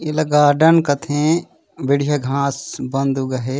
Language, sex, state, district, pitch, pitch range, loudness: Chhattisgarhi, male, Chhattisgarh, Raigarh, 145 Hz, 135-155 Hz, -18 LUFS